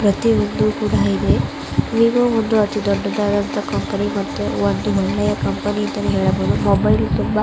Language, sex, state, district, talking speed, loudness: Kannada, female, Karnataka, Mysore, 130 wpm, -18 LUFS